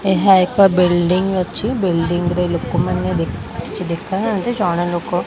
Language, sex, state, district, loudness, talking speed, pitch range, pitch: Odia, female, Odisha, Khordha, -17 LUFS, 150 wpm, 170-190 Hz, 180 Hz